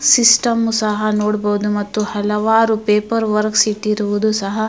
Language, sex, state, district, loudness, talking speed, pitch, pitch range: Kannada, female, Karnataka, Mysore, -16 LUFS, 130 wpm, 215 Hz, 210-220 Hz